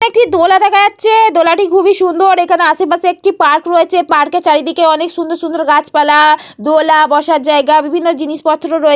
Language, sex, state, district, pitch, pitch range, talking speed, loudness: Bengali, female, Jharkhand, Jamtara, 335 Hz, 310-360 Hz, 180 wpm, -10 LUFS